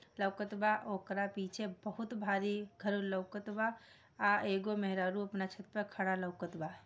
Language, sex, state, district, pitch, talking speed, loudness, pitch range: Bhojpuri, female, Bihar, Gopalganj, 200 Hz, 160 wpm, -38 LUFS, 190-210 Hz